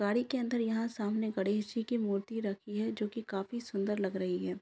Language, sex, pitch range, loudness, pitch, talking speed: Maithili, female, 200-230 Hz, -35 LUFS, 210 Hz, 235 wpm